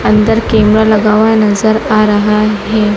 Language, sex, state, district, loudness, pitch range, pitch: Hindi, female, Madhya Pradesh, Dhar, -10 LUFS, 210-220 Hz, 215 Hz